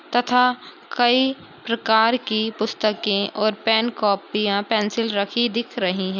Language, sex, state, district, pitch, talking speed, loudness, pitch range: Hindi, female, Uttar Pradesh, Muzaffarnagar, 220 Hz, 125 wpm, -21 LUFS, 210-240 Hz